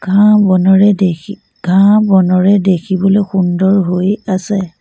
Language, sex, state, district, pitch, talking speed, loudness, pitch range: Assamese, female, Assam, Sonitpur, 190 Hz, 110 wpm, -11 LUFS, 185-200 Hz